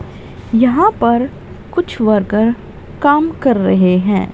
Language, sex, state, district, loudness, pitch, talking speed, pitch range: Hindi, female, Haryana, Jhajjar, -14 LUFS, 235 Hz, 110 wpm, 205-285 Hz